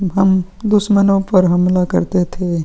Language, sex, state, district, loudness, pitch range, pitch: Hindi, male, Bihar, Vaishali, -15 LUFS, 180-195 Hz, 190 Hz